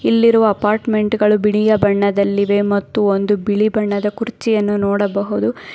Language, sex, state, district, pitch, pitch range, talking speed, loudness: Kannada, female, Karnataka, Bangalore, 210 Hz, 200-215 Hz, 115 wpm, -16 LUFS